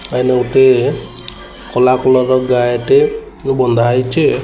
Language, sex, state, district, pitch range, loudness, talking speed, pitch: Odia, female, Odisha, Sambalpur, 125-135 Hz, -13 LUFS, 110 wpm, 130 Hz